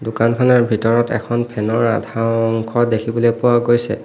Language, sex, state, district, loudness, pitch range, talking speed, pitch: Assamese, male, Assam, Hailakandi, -16 LUFS, 115-120 Hz, 150 wpm, 115 Hz